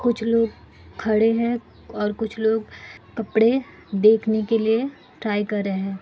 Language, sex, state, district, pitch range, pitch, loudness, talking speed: Hindi, female, Bihar, Kishanganj, 215-230 Hz, 220 Hz, -22 LUFS, 150 wpm